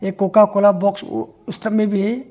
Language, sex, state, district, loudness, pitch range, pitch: Hindi, male, Arunachal Pradesh, Longding, -17 LUFS, 195-215 Hz, 200 Hz